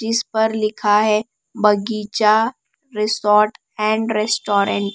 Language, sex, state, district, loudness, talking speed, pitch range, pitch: Hindi, female, Bihar, West Champaran, -18 LUFS, 110 wpm, 210-220 Hz, 215 Hz